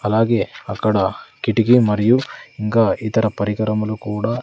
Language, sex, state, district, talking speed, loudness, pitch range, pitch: Telugu, male, Andhra Pradesh, Sri Satya Sai, 110 wpm, -18 LUFS, 105-115 Hz, 110 Hz